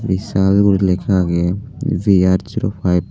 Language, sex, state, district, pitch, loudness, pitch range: Chakma, male, Tripura, Unakoti, 95 Hz, -16 LUFS, 90-100 Hz